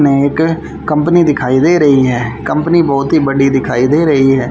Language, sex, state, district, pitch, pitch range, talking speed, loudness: Hindi, male, Haryana, Jhajjar, 140 Hz, 135-155 Hz, 200 wpm, -12 LUFS